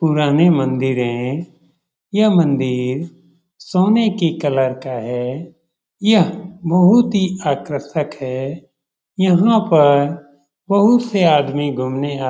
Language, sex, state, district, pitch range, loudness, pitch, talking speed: Hindi, male, Bihar, Jamui, 140-185 Hz, -17 LUFS, 155 Hz, 110 wpm